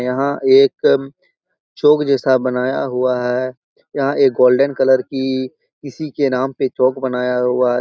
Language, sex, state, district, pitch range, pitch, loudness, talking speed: Hindi, male, Bihar, Jahanabad, 125-140 Hz, 130 Hz, -16 LUFS, 155 wpm